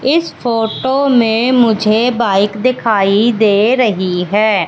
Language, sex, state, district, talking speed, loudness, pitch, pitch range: Hindi, female, Madhya Pradesh, Katni, 115 wpm, -13 LUFS, 225 Hz, 205-245 Hz